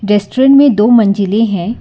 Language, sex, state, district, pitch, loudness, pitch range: Hindi, female, Karnataka, Bangalore, 220 Hz, -10 LUFS, 205-240 Hz